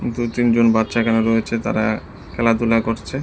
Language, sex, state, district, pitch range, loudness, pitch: Bengali, male, Tripura, West Tripura, 110-115 Hz, -18 LUFS, 115 Hz